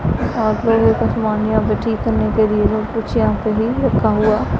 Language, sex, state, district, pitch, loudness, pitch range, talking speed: Hindi, female, Punjab, Pathankot, 220 Hz, -17 LUFS, 215-225 Hz, 220 wpm